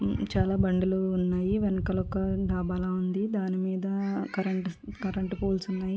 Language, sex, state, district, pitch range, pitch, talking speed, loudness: Telugu, female, Andhra Pradesh, Krishna, 185-195 Hz, 190 Hz, 170 wpm, -29 LUFS